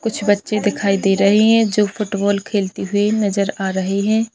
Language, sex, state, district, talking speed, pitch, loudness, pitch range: Hindi, female, Chhattisgarh, Bilaspur, 195 wpm, 205 Hz, -17 LUFS, 200-215 Hz